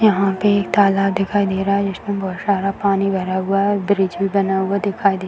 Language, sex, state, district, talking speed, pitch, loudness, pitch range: Hindi, female, Bihar, Madhepura, 260 wpm, 195 Hz, -18 LUFS, 190-200 Hz